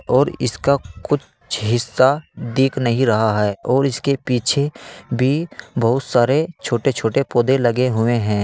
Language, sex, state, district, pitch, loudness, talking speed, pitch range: Hindi, male, Uttar Pradesh, Saharanpur, 125 Hz, -19 LUFS, 140 wpm, 120-140 Hz